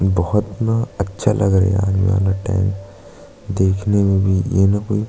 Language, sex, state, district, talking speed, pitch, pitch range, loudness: Hindi, male, Chhattisgarh, Sukma, 200 wpm, 95 Hz, 95-105 Hz, -18 LUFS